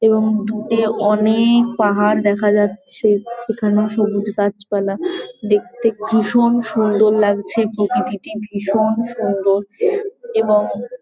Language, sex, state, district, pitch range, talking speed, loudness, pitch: Bengali, female, West Bengal, Jalpaiguri, 205-230 Hz, 100 wpm, -17 LUFS, 215 Hz